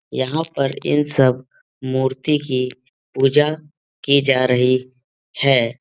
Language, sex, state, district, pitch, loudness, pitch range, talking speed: Hindi, male, Uttar Pradesh, Etah, 130 Hz, -18 LUFS, 130-145 Hz, 115 wpm